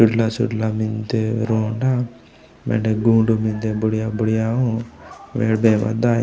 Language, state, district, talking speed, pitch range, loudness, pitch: Gondi, Chhattisgarh, Sukma, 155 wpm, 110-115 Hz, -20 LUFS, 110 Hz